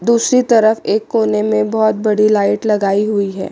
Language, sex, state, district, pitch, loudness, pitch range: Hindi, female, Chandigarh, Chandigarh, 215 Hz, -14 LUFS, 210-220 Hz